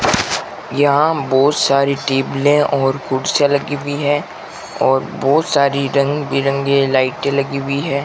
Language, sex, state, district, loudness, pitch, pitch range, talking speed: Hindi, male, Rajasthan, Bikaner, -16 LUFS, 140 Hz, 135-145 Hz, 135 wpm